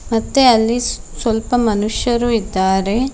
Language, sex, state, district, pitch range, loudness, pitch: Kannada, female, Karnataka, Bidar, 215-245 Hz, -16 LUFS, 230 Hz